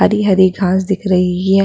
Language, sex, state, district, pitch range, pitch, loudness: Hindi, female, Chhattisgarh, Sukma, 185-195 Hz, 190 Hz, -14 LUFS